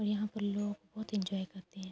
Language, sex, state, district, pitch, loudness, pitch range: Urdu, female, Andhra Pradesh, Anantapur, 205 Hz, -38 LUFS, 190-210 Hz